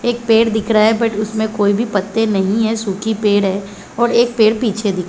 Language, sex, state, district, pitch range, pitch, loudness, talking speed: Hindi, female, Chhattisgarh, Bilaspur, 205-225 Hz, 220 Hz, -15 LUFS, 250 wpm